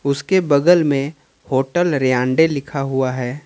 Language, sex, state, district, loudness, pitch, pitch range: Hindi, male, Jharkhand, Ranchi, -17 LUFS, 140 Hz, 130-160 Hz